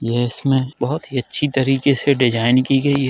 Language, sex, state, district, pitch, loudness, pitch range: Hindi, male, Uttar Pradesh, Jalaun, 135 Hz, -18 LUFS, 125-140 Hz